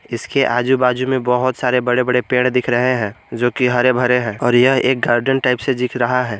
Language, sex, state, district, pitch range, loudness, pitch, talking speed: Hindi, male, Jharkhand, Garhwa, 120-125 Hz, -16 LUFS, 125 Hz, 245 wpm